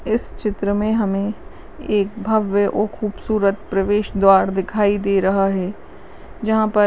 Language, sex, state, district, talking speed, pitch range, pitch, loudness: Hindi, female, Uttarakhand, Uttarkashi, 150 wpm, 195-215 Hz, 205 Hz, -19 LUFS